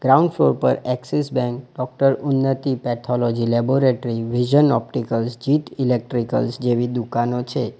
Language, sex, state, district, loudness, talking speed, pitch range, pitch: Gujarati, male, Gujarat, Valsad, -20 LUFS, 125 wpm, 120-135 Hz, 125 Hz